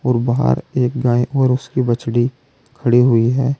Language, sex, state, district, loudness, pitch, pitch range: Hindi, male, Uttar Pradesh, Saharanpur, -17 LUFS, 125 Hz, 120-130 Hz